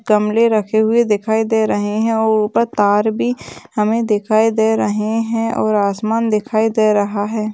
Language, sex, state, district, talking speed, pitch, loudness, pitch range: Hindi, female, Chhattisgarh, Kabirdham, 175 wpm, 220 Hz, -16 LUFS, 210-225 Hz